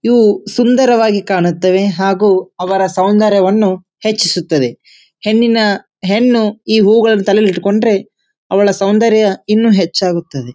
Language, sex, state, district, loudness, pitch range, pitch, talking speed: Kannada, male, Karnataka, Bijapur, -12 LUFS, 190-220 Hz, 200 Hz, 95 wpm